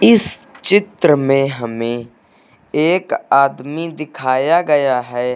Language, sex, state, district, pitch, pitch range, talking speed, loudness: Hindi, male, Uttar Pradesh, Lucknow, 140 Hz, 125-165 Hz, 100 wpm, -16 LUFS